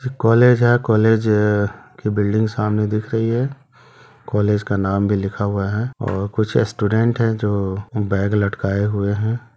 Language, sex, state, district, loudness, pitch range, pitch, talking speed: Hindi, male, Bihar, Madhepura, -19 LUFS, 100-115 Hz, 105 Hz, 165 wpm